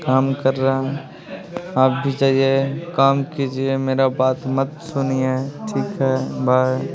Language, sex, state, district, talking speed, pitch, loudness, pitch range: Hindi, male, Bihar, Patna, 145 wpm, 135 Hz, -19 LUFS, 130-140 Hz